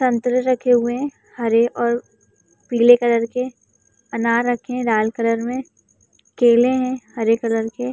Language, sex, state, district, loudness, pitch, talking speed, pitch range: Hindi, female, Uttar Pradesh, Jalaun, -19 LUFS, 240 Hz, 150 wpm, 230-250 Hz